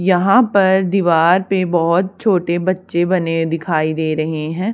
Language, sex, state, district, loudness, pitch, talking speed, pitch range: Hindi, female, Haryana, Charkhi Dadri, -16 LUFS, 180 Hz, 150 wpm, 165-190 Hz